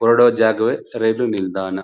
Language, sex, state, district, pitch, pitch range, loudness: Kannada, male, Karnataka, Chamarajanagar, 110 Hz, 95-115 Hz, -18 LUFS